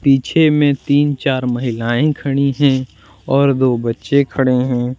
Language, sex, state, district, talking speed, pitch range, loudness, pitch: Hindi, male, Jharkhand, Deoghar, 145 wpm, 125-140 Hz, -15 LUFS, 135 Hz